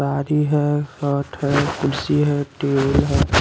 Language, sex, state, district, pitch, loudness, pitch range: Hindi, male, Chandigarh, Chandigarh, 140 Hz, -20 LUFS, 140-145 Hz